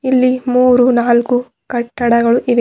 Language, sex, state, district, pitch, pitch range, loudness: Kannada, female, Karnataka, Bidar, 245 Hz, 240-250 Hz, -13 LUFS